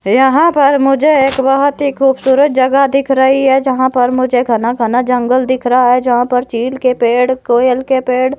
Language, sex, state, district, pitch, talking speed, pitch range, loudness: Hindi, female, Himachal Pradesh, Shimla, 260 Hz, 200 wpm, 250-270 Hz, -12 LUFS